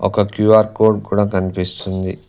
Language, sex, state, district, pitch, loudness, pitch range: Telugu, male, Telangana, Mahabubabad, 100 Hz, -16 LUFS, 95-105 Hz